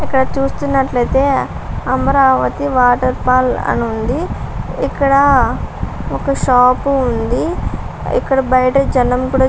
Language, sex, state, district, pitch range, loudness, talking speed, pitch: Telugu, female, Andhra Pradesh, Visakhapatnam, 250-275 Hz, -15 LUFS, 95 wpm, 260 Hz